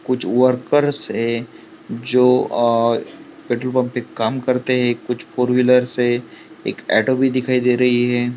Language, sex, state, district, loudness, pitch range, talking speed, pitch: Hindi, male, Maharashtra, Pune, -18 LUFS, 120-125 Hz, 160 wpm, 125 Hz